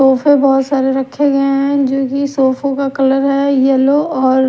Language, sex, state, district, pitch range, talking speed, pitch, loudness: Hindi, female, Himachal Pradesh, Shimla, 265-280 Hz, 185 wpm, 275 Hz, -13 LUFS